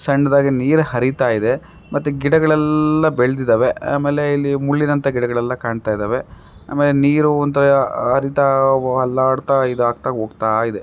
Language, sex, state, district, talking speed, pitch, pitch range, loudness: Kannada, male, Karnataka, Raichur, 115 wpm, 140 Hz, 125-145 Hz, -17 LUFS